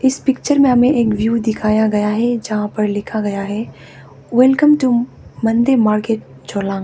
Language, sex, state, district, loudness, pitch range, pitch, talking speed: Hindi, female, Arunachal Pradesh, Papum Pare, -16 LUFS, 210-250 Hz, 220 Hz, 165 wpm